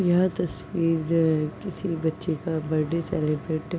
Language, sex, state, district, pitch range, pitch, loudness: Hindi, female, Uttar Pradesh, Deoria, 155-175 Hz, 165 Hz, -26 LUFS